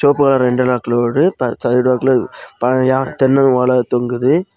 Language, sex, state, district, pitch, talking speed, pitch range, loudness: Tamil, male, Tamil Nadu, Kanyakumari, 125 Hz, 145 wpm, 125-135 Hz, -15 LUFS